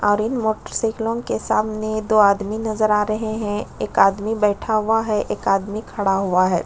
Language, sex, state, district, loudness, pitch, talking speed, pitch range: Hindi, female, Uttar Pradesh, Budaun, -20 LUFS, 215 Hz, 200 wpm, 205-220 Hz